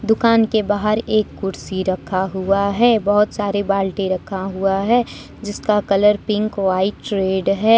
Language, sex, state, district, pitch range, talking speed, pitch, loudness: Hindi, female, Jharkhand, Deoghar, 195-215 Hz, 155 wpm, 205 Hz, -18 LUFS